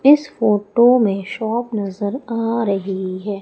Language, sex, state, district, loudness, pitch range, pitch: Hindi, female, Madhya Pradesh, Umaria, -18 LUFS, 200-235 Hz, 220 Hz